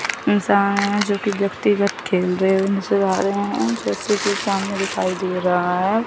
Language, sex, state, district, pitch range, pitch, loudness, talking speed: Hindi, female, Chandigarh, Chandigarh, 185-200 Hz, 195 Hz, -20 LUFS, 190 wpm